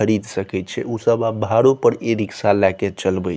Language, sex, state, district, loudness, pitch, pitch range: Maithili, male, Bihar, Saharsa, -19 LUFS, 105 Hz, 95-115 Hz